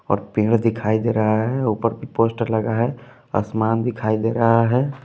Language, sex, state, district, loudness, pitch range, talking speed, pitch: Hindi, male, Bihar, West Champaran, -20 LUFS, 110-120 Hz, 190 wpm, 115 Hz